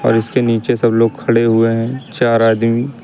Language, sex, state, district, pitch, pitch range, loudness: Hindi, male, Uttar Pradesh, Lucknow, 115 Hz, 115-120 Hz, -14 LUFS